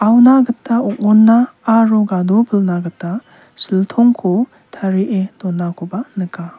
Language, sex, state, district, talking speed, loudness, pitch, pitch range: Garo, male, Meghalaya, South Garo Hills, 90 wpm, -15 LUFS, 210 Hz, 185-230 Hz